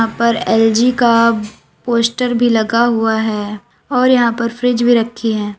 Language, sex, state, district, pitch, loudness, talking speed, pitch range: Hindi, female, Uttar Pradesh, Lalitpur, 230 Hz, -14 LUFS, 170 wpm, 225-240 Hz